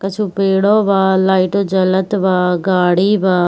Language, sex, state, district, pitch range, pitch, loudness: Hindi, female, Bihar, Kishanganj, 185-195 Hz, 190 Hz, -14 LUFS